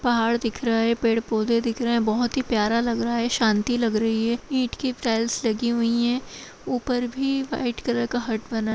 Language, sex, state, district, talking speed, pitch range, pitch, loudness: Kumaoni, female, Uttarakhand, Tehri Garhwal, 225 wpm, 225-245 Hz, 235 Hz, -24 LUFS